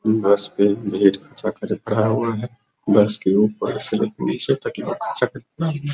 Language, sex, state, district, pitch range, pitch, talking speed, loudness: Hindi, male, Bihar, Araria, 100-120 Hz, 110 Hz, 130 wpm, -20 LUFS